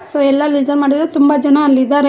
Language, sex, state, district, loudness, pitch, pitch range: Kannada, female, Karnataka, Bangalore, -12 LUFS, 285 Hz, 280-295 Hz